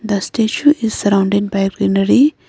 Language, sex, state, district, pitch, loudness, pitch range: English, female, Arunachal Pradesh, Lower Dibang Valley, 205 Hz, -15 LUFS, 195-225 Hz